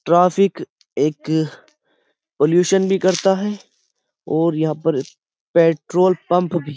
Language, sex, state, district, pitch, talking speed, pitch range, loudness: Hindi, male, Uttar Pradesh, Jyotiba Phule Nagar, 170 Hz, 105 wpm, 155-185 Hz, -18 LUFS